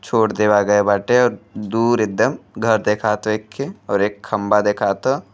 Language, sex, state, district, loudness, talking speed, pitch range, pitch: Bhojpuri, male, Uttar Pradesh, Deoria, -18 LUFS, 180 wpm, 105-115 Hz, 105 Hz